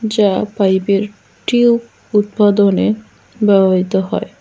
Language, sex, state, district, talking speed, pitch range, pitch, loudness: Bengali, female, West Bengal, Cooch Behar, 80 wpm, 190-210 Hz, 200 Hz, -15 LUFS